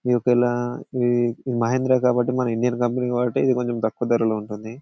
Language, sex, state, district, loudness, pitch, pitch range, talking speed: Telugu, male, Telangana, Karimnagar, -22 LUFS, 120 Hz, 120-125 Hz, 185 wpm